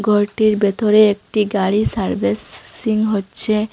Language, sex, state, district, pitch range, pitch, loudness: Bengali, female, Assam, Hailakandi, 205-215 Hz, 210 Hz, -17 LUFS